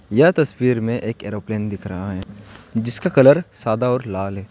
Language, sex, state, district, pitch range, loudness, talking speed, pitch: Hindi, male, West Bengal, Alipurduar, 100-125 Hz, -19 LUFS, 185 wpm, 110 Hz